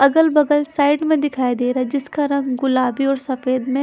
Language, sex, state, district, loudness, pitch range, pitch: Hindi, female, Haryana, Charkhi Dadri, -18 LUFS, 255-295 Hz, 275 Hz